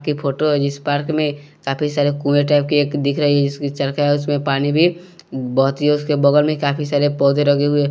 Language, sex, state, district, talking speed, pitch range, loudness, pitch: Hindi, male, Bihar, West Champaran, 235 wpm, 140-150 Hz, -17 LUFS, 145 Hz